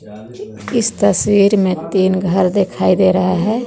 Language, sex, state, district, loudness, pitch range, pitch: Hindi, female, Jharkhand, Garhwa, -14 LUFS, 180-200 Hz, 190 Hz